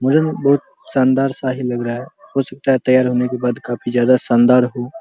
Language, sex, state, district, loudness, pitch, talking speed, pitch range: Hindi, male, Bihar, Araria, -17 LUFS, 130 Hz, 250 wpm, 125-135 Hz